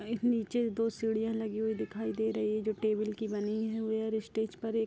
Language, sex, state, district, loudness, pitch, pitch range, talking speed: Hindi, female, Bihar, Darbhanga, -33 LUFS, 220 Hz, 215-225 Hz, 235 wpm